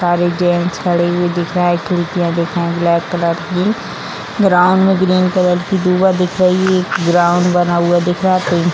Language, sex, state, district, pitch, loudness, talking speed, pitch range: Hindi, female, Bihar, Purnia, 175 Hz, -14 LUFS, 220 wpm, 175-185 Hz